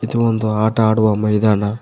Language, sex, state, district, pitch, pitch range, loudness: Kannada, male, Karnataka, Koppal, 110 Hz, 105-110 Hz, -16 LUFS